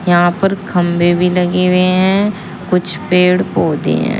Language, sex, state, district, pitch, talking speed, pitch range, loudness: Hindi, female, Uttar Pradesh, Saharanpur, 180 Hz, 155 wpm, 175-190 Hz, -13 LUFS